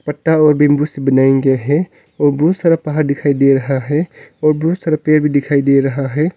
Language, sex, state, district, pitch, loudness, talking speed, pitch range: Hindi, male, Arunachal Pradesh, Longding, 150 Hz, -14 LUFS, 225 wpm, 140-155 Hz